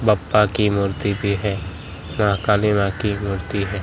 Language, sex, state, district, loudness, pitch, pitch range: Hindi, male, Gujarat, Gandhinagar, -20 LUFS, 100 Hz, 95-105 Hz